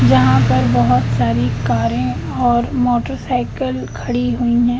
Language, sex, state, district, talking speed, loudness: Hindi, female, Madhya Pradesh, Umaria, 125 wpm, -16 LUFS